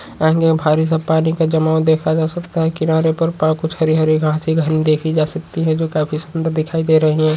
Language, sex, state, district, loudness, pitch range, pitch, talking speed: Hindi, male, Uttarakhand, Uttarkashi, -16 LUFS, 155-160 Hz, 160 Hz, 235 wpm